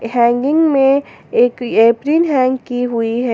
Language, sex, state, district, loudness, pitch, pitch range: Hindi, female, Jharkhand, Garhwa, -14 LUFS, 245 Hz, 235-275 Hz